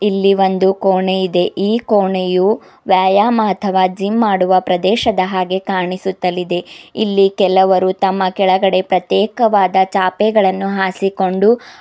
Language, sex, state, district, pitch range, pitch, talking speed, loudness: Kannada, female, Karnataka, Bidar, 185-200 Hz, 190 Hz, 105 wpm, -14 LUFS